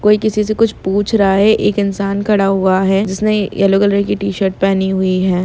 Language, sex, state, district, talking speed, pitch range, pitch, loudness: Hindi, female, Jharkhand, Sahebganj, 220 wpm, 190-210 Hz, 200 Hz, -14 LUFS